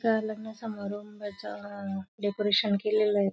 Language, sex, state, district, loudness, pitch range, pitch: Marathi, female, Maharashtra, Aurangabad, -30 LUFS, 200-215 Hz, 205 Hz